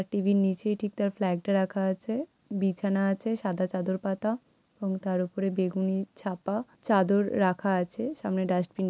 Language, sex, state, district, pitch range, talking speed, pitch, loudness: Bengali, female, West Bengal, Malda, 190-205 Hz, 170 wpm, 195 Hz, -29 LUFS